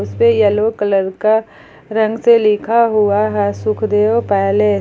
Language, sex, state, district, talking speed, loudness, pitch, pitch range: Hindi, female, Jharkhand, Palamu, 150 wpm, -14 LUFS, 215 Hz, 205-220 Hz